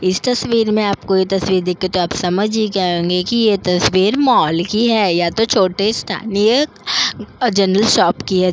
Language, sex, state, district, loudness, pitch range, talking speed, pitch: Hindi, female, Delhi, New Delhi, -15 LUFS, 185-220 Hz, 190 wpm, 200 Hz